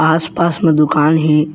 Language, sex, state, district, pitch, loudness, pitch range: Chhattisgarhi, male, Chhattisgarh, Bilaspur, 155 Hz, -13 LUFS, 150-165 Hz